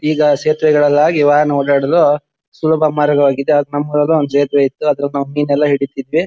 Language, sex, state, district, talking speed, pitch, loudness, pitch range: Kannada, male, Karnataka, Shimoga, 145 wpm, 145 Hz, -14 LUFS, 140-150 Hz